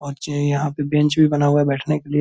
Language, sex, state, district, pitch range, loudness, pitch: Hindi, male, Bihar, Purnia, 145-150 Hz, -19 LUFS, 145 Hz